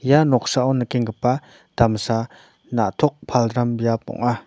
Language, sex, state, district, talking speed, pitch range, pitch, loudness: Garo, male, Meghalaya, North Garo Hills, 105 wpm, 115-130 Hz, 120 Hz, -21 LUFS